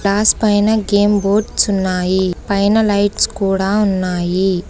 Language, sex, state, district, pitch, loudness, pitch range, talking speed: Telugu, female, Telangana, Hyderabad, 200 Hz, -15 LUFS, 190-205 Hz, 115 wpm